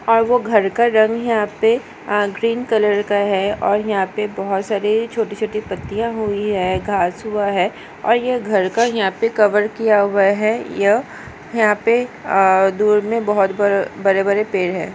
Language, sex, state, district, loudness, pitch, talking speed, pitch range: Hindi, female, Maharashtra, Solapur, -17 LUFS, 210 Hz, 190 wpm, 200-225 Hz